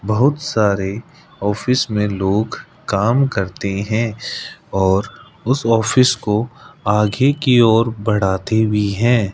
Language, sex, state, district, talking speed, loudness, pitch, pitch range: Hindi, male, Rajasthan, Jaipur, 115 wpm, -17 LUFS, 110 Hz, 100-120 Hz